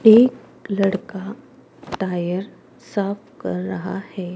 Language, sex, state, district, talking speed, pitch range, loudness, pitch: Hindi, female, Maharashtra, Gondia, 95 wpm, 180-220 Hz, -22 LUFS, 195 Hz